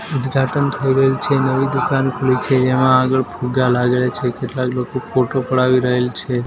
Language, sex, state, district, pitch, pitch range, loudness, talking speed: Gujarati, male, Gujarat, Gandhinagar, 130 Hz, 125-135 Hz, -17 LUFS, 175 wpm